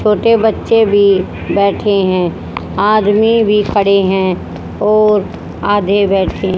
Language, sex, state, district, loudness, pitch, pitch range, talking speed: Hindi, female, Haryana, Charkhi Dadri, -12 LUFS, 205 Hz, 195-215 Hz, 110 wpm